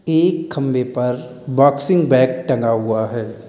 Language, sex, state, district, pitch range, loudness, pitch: Hindi, male, Uttar Pradesh, Lalitpur, 125-145 Hz, -17 LUFS, 130 Hz